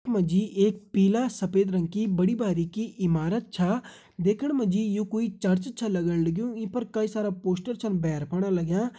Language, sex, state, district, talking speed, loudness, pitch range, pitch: Hindi, male, Uttarakhand, Uttarkashi, 200 wpm, -27 LUFS, 185-220 Hz, 205 Hz